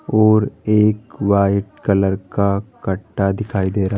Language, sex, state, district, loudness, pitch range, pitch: Hindi, male, Rajasthan, Jaipur, -18 LUFS, 100-105 Hz, 100 Hz